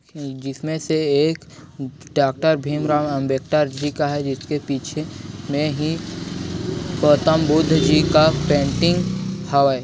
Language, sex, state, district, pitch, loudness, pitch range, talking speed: Hindi, male, Chhattisgarh, Korba, 150 Hz, -20 LUFS, 140-160 Hz, 115 wpm